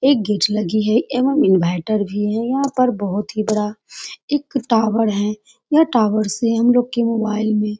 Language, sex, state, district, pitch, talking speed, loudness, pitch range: Hindi, female, Bihar, Saran, 220 Hz, 185 wpm, -18 LUFS, 210-245 Hz